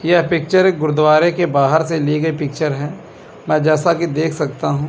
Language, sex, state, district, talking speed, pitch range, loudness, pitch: Hindi, male, Chandigarh, Chandigarh, 210 wpm, 150-170 Hz, -16 LUFS, 155 Hz